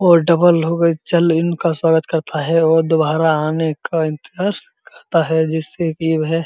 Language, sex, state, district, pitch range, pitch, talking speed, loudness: Hindi, male, Uttar Pradesh, Muzaffarnagar, 160-170 Hz, 165 Hz, 150 wpm, -16 LUFS